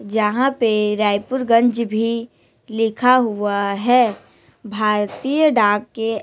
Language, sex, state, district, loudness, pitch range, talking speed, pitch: Hindi, female, Chhattisgarh, Raipur, -18 LUFS, 210-245 Hz, 105 wpm, 225 Hz